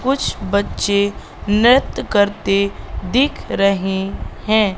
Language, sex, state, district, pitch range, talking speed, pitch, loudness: Hindi, female, Madhya Pradesh, Katni, 195-220 Hz, 90 wpm, 205 Hz, -17 LUFS